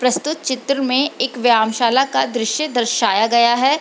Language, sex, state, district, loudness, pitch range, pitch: Hindi, female, Bihar, Lakhisarai, -17 LUFS, 235-270 Hz, 250 Hz